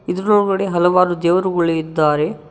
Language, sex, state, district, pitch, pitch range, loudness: Kannada, male, Karnataka, Koppal, 175 Hz, 160-185 Hz, -16 LUFS